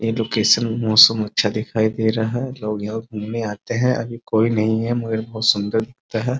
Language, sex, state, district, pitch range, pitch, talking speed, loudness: Hindi, male, Bihar, Muzaffarpur, 110-115 Hz, 110 Hz, 235 wpm, -19 LUFS